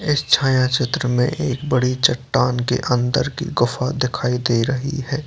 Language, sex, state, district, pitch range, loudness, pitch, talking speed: Hindi, male, Bihar, Purnia, 125-140 Hz, -19 LUFS, 125 Hz, 180 wpm